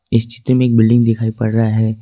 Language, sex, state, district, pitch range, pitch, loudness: Hindi, male, Jharkhand, Ranchi, 110-120 Hz, 115 Hz, -14 LUFS